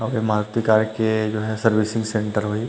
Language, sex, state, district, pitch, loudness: Chhattisgarhi, male, Chhattisgarh, Rajnandgaon, 110 Hz, -21 LUFS